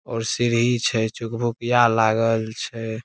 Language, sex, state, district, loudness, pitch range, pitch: Maithili, male, Bihar, Saharsa, -21 LUFS, 110-120 Hz, 115 Hz